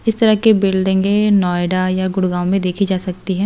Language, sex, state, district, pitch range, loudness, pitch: Hindi, female, Delhi, New Delhi, 185-200 Hz, -16 LUFS, 190 Hz